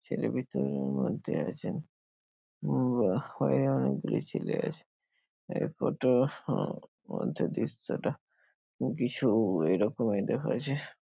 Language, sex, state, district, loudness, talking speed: Bengali, male, West Bengal, Paschim Medinipur, -31 LUFS, 100 wpm